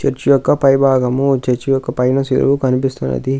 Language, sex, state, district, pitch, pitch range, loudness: Telugu, male, Andhra Pradesh, Krishna, 130 Hz, 125-135 Hz, -15 LUFS